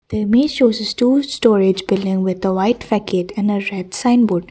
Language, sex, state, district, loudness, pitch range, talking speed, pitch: English, female, Assam, Kamrup Metropolitan, -17 LUFS, 190-240 Hz, 200 wpm, 205 Hz